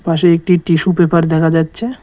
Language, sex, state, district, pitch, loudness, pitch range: Bengali, male, West Bengal, Cooch Behar, 170 Hz, -13 LUFS, 165-180 Hz